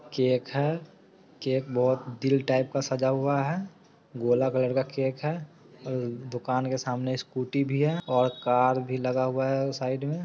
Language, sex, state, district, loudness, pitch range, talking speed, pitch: Hindi, male, Bihar, Sitamarhi, -28 LUFS, 130-140 Hz, 185 wpm, 130 Hz